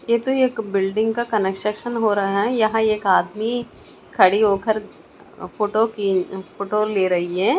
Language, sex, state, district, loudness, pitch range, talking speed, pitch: Hindi, female, Chandigarh, Chandigarh, -20 LUFS, 195-225 Hz, 160 wpm, 210 Hz